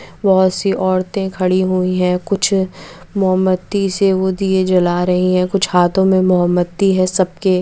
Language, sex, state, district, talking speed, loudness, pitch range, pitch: Hindi, female, Andhra Pradesh, Chittoor, 155 wpm, -15 LUFS, 180-190 Hz, 185 Hz